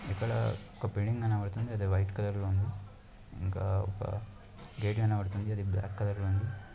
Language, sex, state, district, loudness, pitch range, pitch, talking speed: Telugu, male, Andhra Pradesh, Anantapur, -34 LUFS, 100-105 Hz, 100 Hz, 160 wpm